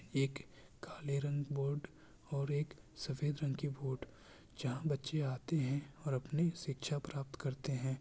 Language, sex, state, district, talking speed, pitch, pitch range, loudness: Urdu, male, Bihar, Kishanganj, 165 wpm, 140 Hz, 135-150 Hz, -40 LUFS